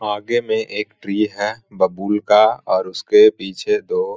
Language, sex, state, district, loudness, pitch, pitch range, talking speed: Hindi, male, Bihar, Jahanabad, -18 LUFS, 105 Hz, 105-135 Hz, 175 wpm